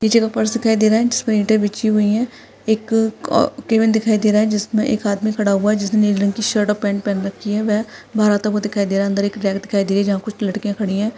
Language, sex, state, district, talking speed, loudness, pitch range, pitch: Hindi, female, Maharashtra, Solapur, 280 wpm, -18 LUFS, 205-220 Hz, 210 Hz